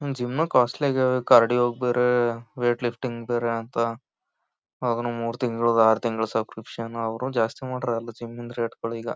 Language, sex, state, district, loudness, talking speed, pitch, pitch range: Kannada, male, Karnataka, Gulbarga, -24 LUFS, 155 wpm, 120 Hz, 115-125 Hz